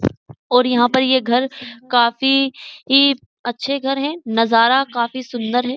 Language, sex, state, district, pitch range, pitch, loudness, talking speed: Hindi, female, Uttar Pradesh, Jyotiba Phule Nagar, 240-270 Hz, 255 Hz, -17 LUFS, 145 wpm